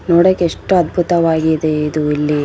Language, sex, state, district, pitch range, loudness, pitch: Kannada, female, Karnataka, Bellary, 150-175 Hz, -15 LUFS, 160 Hz